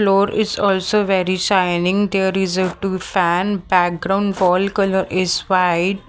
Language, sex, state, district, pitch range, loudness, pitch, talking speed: English, female, Maharashtra, Mumbai Suburban, 185-195 Hz, -17 LUFS, 190 Hz, 150 wpm